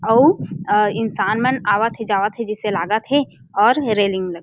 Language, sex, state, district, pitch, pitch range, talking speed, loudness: Chhattisgarhi, female, Chhattisgarh, Jashpur, 215 Hz, 205-230 Hz, 205 wpm, -18 LUFS